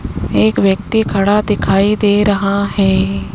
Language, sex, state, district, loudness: Hindi, male, Rajasthan, Jaipur, -13 LUFS